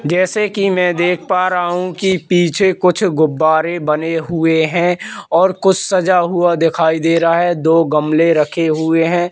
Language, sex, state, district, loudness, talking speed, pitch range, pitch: Hindi, male, Madhya Pradesh, Katni, -14 LUFS, 175 wpm, 165-185 Hz, 175 Hz